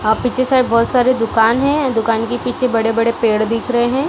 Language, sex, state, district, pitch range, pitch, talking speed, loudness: Hindi, female, Punjab, Kapurthala, 225-255 Hz, 240 Hz, 220 wpm, -15 LUFS